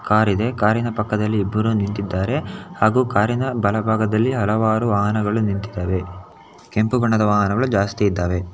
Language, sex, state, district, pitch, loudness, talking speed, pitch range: Kannada, male, Karnataka, Shimoga, 105 Hz, -20 LUFS, 120 wpm, 100-110 Hz